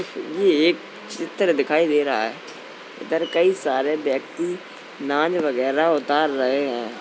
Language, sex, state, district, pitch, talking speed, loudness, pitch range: Hindi, male, Uttar Pradesh, Jalaun, 155 Hz, 135 wpm, -21 LUFS, 140-175 Hz